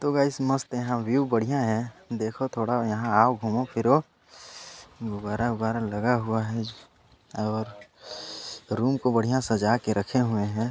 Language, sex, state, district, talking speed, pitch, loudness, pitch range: Hindi, male, Chhattisgarh, Sarguja, 155 wpm, 115 Hz, -26 LUFS, 110-125 Hz